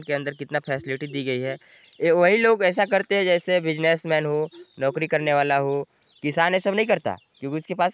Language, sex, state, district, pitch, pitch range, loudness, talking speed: Hindi, male, Chhattisgarh, Sarguja, 160 Hz, 140-180 Hz, -23 LUFS, 210 wpm